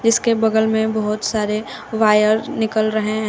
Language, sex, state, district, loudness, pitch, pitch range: Hindi, female, Uttar Pradesh, Shamli, -18 LUFS, 220 Hz, 215-220 Hz